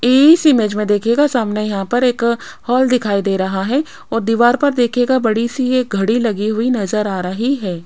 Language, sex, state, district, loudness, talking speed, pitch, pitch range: Hindi, female, Rajasthan, Jaipur, -15 LUFS, 205 wpm, 235 Hz, 210-250 Hz